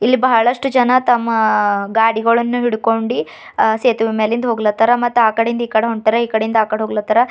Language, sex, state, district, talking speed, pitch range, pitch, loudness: Kannada, female, Karnataka, Bidar, 150 wpm, 220-240 Hz, 230 Hz, -15 LUFS